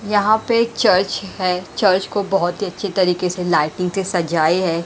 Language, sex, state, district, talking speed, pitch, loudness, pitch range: Hindi, female, Maharashtra, Mumbai Suburban, 195 wpm, 185 Hz, -18 LUFS, 180-200 Hz